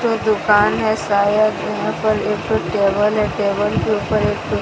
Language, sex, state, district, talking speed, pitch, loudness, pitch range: Hindi, female, Odisha, Sambalpur, 170 wpm, 210 Hz, -17 LUFS, 205-215 Hz